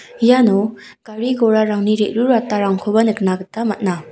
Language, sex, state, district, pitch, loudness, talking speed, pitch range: Garo, female, Meghalaya, South Garo Hills, 215 Hz, -16 LUFS, 85 wpm, 205-225 Hz